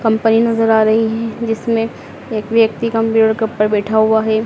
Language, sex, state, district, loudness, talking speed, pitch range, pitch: Hindi, female, Madhya Pradesh, Dhar, -15 LUFS, 190 wpm, 220-225 Hz, 225 Hz